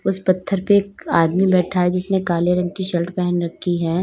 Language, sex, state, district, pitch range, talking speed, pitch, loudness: Hindi, female, Uttar Pradesh, Lalitpur, 175-190 Hz, 225 wpm, 180 Hz, -19 LUFS